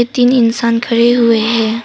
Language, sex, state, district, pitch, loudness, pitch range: Hindi, female, Arunachal Pradesh, Papum Pare, 235 Hz, -12 LUFS, 230-240 Hz